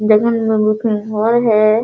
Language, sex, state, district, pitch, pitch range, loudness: Hindi, female, Bihar, Sitamarhi, 220 Hz, 215-225 Hz, -14 LUFS